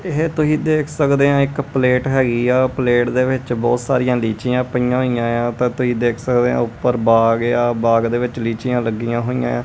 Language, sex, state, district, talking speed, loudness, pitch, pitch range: Punjabi, male, Punjab, Kapurthala, 210 wpm, -17 LUFS, 125 Hz, 120-130 Hz